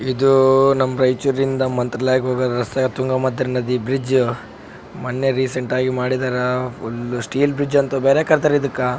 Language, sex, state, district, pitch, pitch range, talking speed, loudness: Kannada, male, Karnataka, Raichur, 130 Hz, 125-135 Hz, 135 wpm, -18 LUFS